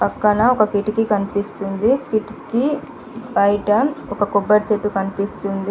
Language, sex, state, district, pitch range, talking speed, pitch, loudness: Telugu, female, Telangana, Mahabubabad, 200-225 Hz, 105 wpm, 210 Hz, -19 LUFS